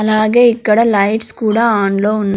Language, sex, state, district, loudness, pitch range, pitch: Telugu, female, Andhra Pradesh, Sri Satya Sai, -12 LUFS, 210-225 Hz, 215 Hz